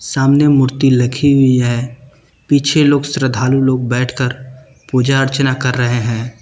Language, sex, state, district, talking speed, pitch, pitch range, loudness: Hindi, male, Uttar Pradesh, Lucknow, 140 wpm, 130 Hz, 125-135 Hz, -14 LUFS